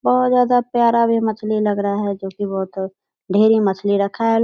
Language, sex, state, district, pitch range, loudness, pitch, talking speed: Hindi, female, Bihar, Purnia, 200-230 Hz, -18 LUFS, 210 Hz, 215 wpm